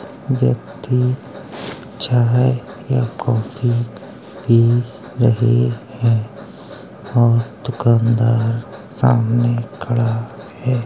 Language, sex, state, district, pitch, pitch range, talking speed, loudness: Hindi, male, Uttar Pradesh, Jalaun, 120 Hz, 115-125 Hz, 65 wpm, -18 LUFS